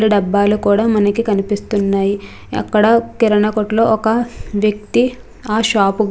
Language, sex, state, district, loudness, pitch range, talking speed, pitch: Telugu, female, Andhra Pradesh, Krishna, -15 LUFS, 205-225 Hz, 60 wpm, 215 Hz